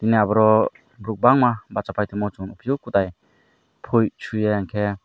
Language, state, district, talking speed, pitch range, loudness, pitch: Kokborok, Tripura, Dhalai, 130 wpm, 105-115 Hz, -21 LUFS, 105 Hz